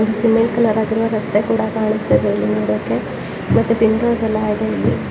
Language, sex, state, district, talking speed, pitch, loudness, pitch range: Kannada, female, Karnataka, Dharwad, 175 wpm, 220 Hz, -17 LUFS, 210-225 Hz